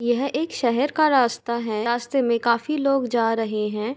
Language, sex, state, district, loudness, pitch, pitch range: Hindi, female, Uttar Pradesh, Jalaun, -22 LUFS, 240 Hz, 230-275 Hz